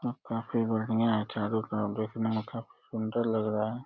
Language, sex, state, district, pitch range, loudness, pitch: Hindi, male, Uttar Pradesh, Deoria, 110-115 Hz, -31 LUFS, 110 Hz